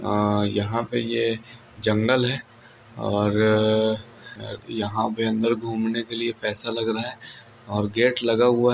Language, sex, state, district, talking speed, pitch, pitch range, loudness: Hindi, male, Andhra Pradesh, Anantapur, 75 wpm, 115 Hz, 110-115 Hz, -23 LUFS